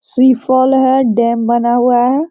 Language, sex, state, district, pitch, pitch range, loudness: Hindi, male, Bihar, Sitamarhi, 250 Hz, 235-260 Hz, -12 LUFS